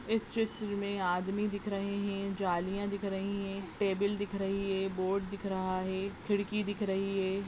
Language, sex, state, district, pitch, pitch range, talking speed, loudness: Hindi, female, Goa, North and South Goa, 195 Hz, 195-200 Hz, 185 wpm, -34 LUFS